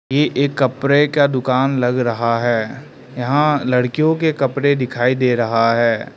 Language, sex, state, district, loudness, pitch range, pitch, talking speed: Hindi, male, Arunachal Pradesh, Lower Dibang Valley, -17 LUFS, 120-140 Hz, 130 Hz, 155 wpm